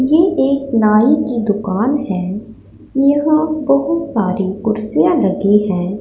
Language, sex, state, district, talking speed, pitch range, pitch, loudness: Hindi, female, Punjab, Pathankot, 120 wpm, 200-280 Hz, 230 Hz, -15 LUFS